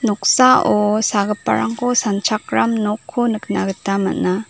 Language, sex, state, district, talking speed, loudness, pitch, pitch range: Garo, female, Meghalaya, South Garo Hills, 95 wpm, -17 LUFS, 215 Hz, 205-230 Hz